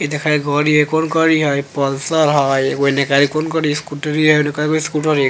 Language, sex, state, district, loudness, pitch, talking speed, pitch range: Bajjika, female, Bihar, Vaishali, -16 LUFS, 150 Hz, 215 wpm, 140-155 Hz